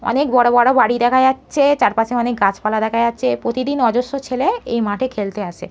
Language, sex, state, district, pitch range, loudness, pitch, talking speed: Bengali, female, West Bengal, North 24 Parganas, 225-260 Hz, -17 LUFS, 240 Hz, 200 wpm